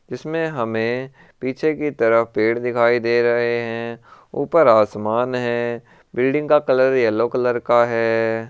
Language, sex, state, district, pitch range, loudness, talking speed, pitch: Marwari, male, Rajasthan, Churu, 115-130 Hz, -19 LUFS, 140 wpm, 120 Hz